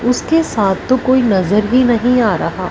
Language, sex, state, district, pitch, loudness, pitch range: Hindi, female, Punjab, Fazilka, 235 Hz, -14 LUFS, 195-255 Hz